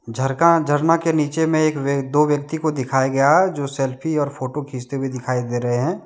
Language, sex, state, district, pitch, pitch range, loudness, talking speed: Hindi, male, Jharkhand, Deoghar, 140 Hz, 130-155 Hz, -19 LUFS, 220 wpm